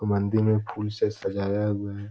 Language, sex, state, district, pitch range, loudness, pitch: Hindi, male, Bihar, Darbhanga, 100-105 Hz, -26 LUFS, 105 Hz